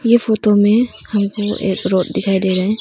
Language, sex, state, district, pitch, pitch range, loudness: Hindi, female, Arunachal Pradesh, Longding, 205 Hz, 190-220 Hz, -16 LUFS